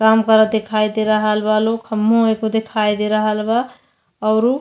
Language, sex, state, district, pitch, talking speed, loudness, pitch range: Bhojpuri, female, Uttar Pradesh, Deoria, 220 Hz, 195 wpm, -17 LUFS, 215-225 Hz